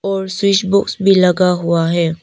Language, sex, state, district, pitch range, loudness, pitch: Hindi, female, Arunachal Pradesh, Papum Pare, 170-195 Hz, -14 LUFS, 185 Hz